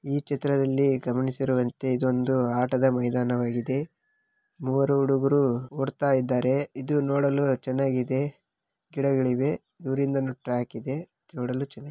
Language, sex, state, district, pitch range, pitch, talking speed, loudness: Kannada, male, Karnataka, Raichur, 125-140 Hz, 135 Hz, 100 wpm, -26 LUFS